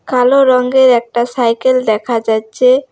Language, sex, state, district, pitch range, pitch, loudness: Bengali, female, West Bengal, Alipurduar, 235-260 Hz, 250 Hz, -12 LUFS